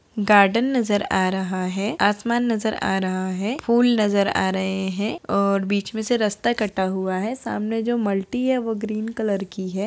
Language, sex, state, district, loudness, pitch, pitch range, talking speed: Hindi, female, Bihar, Saharsa, -22 LUFS, 205 Hz, 190-225 Hz, 195 wpm